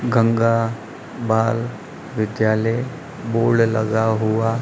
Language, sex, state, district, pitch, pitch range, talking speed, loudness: Hindi, male, Rajasthan, Bikaner, 115 Hz, 110-115 Hz, 80 wpm, -20 LUFS